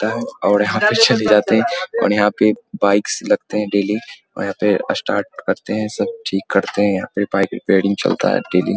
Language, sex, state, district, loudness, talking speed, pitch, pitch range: Hindi, male, Bihar, Muzaffarpur, -17 LUFS, 205 wpm, 105 Hz, 100-110 Hz